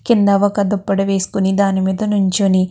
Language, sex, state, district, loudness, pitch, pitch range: Telugu, female, Andhra Pradesh, Guntur, -16 LUFS, 195 Hz, 190-205 Hz